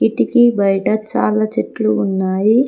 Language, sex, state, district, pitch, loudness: Telugu, female, Telangana, Komaram Bheem, 190 Hz, -16 LUFS